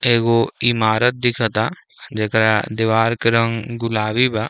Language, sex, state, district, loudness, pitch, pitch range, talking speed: Bhojpuri, male, Uttar Pradesh, Deoria, -18 LUFS, 115 Hz, 110-120 Hz, 120 wpm